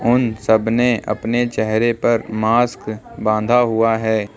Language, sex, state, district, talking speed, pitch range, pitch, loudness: Hindi, male, Uttar Pradesh, Lucknow, 135 wpm, 110-120 Hz, 115 Hz, -17 LUFS